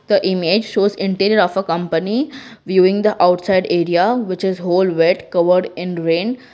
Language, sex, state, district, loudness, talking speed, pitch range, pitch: English, female, Gujarat, Valsad, -16 LUFS, 165 wpm, 175-210 Hz, 190 Hz